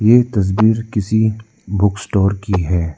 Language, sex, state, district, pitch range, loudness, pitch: Hindi, male, Arunachal Pradesh, Lower Dibang Valley, 100-110 Hz, -16 LUFS, 105 Hz